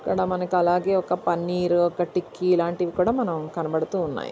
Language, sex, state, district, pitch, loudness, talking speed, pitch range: Telugu, female, Andhra Pradesh, Anantapur, 175 Hz, -24 LUFS, 140 wpm, 170-180 Hz